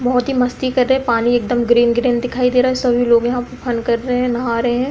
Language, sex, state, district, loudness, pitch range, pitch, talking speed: Hindi, female, Uttar Pradesh, Deoria, -16 LUFS, 240-250 Hz, 245 Hz, 295 wpm